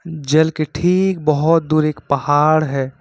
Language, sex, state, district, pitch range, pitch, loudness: Hindi, male, Jharkhand, Ranchi, 145-160 Hz, 155 Hz, -16 LUFS